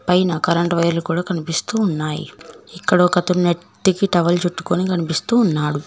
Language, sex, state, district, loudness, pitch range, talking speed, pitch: Telugu, female, Telangana, Mahabubabad, -18 LUFS, 165-180 Hz, 135 wpm, 175 Hz